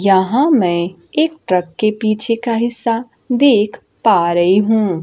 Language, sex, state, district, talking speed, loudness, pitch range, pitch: Hindi, female, Bihar, Kaimur, 145 wpm, -15 LUFS, 185-240 Hz, 215 Hz